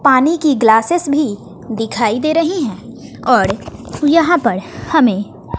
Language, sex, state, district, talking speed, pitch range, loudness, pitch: Hindi, female, Bihar, West Champaran, 130 wpm, 225-315 Hz, -15 LUFS, 275 Hz